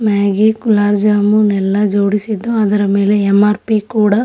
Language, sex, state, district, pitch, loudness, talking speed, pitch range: Kannada, female, Karnataka, Shimoga, 210 Hz, -13 LUFS, 155 wpm, 205-215 Hz